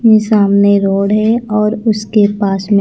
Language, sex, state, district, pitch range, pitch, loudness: Hindi, female, Chandigarh, Chandigarh, 200-215 Hz, 210 Hz, -12 LUFS